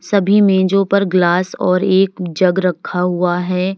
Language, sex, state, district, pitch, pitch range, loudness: Hindi, female, Uttar Pradesh, Lalitpur, 185 Hz, 180-195 Hz, -15 LUFS